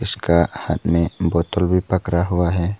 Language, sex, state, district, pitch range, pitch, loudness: Hindi, male, Arunachal Pradesh, Papum Pare, 85-95 Hz, 90 Hz, -19 LUFS